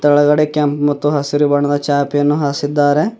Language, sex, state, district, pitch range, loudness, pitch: Kannada, male, Karnataka, Bidar, 145-150 Hz, -15 LUFS, 145 Hz